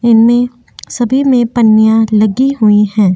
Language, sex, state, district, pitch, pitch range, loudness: Hindi, female, Uttar Pradesh, Jyotiba Phule Nagar, 230 Hz, 215-245 Hz, -10 LUFS